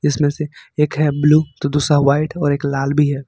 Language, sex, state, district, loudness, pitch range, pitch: Hindi, male, Jharkhand, Ranchi, -17 LUFS, 140-150 Hz, 145 Hz